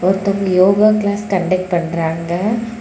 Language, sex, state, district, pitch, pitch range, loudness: Tamil, female, Tamil Nadu, Kanyakumari, 190 Hz, 175-205 Hz, -16 LUFS